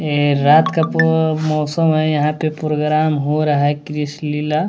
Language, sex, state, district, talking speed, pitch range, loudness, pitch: Hindi, male, Bihar, West Champaran, 165 wpm, 150-155 Hz, -16 LUFS, 155 Hz